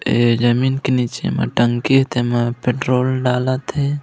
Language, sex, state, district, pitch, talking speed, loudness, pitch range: Chhattisgarhi, male, Chhattisgarh, Raigarh, 125 Hz, 165 wpm, -17 LUFS, 120-130 Hz